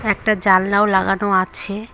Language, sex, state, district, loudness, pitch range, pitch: Bengali, female, West Bengal, Cooch Behar, -17 LUFS, 190-210 Hz, 200 Hz